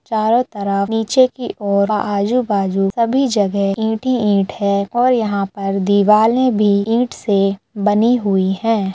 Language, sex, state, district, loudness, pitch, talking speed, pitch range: Hindi, female, Uttarakhand, Tehri Garhwal, -16 LUFS, 210 Hz, 155 wpm, 200-230 Hz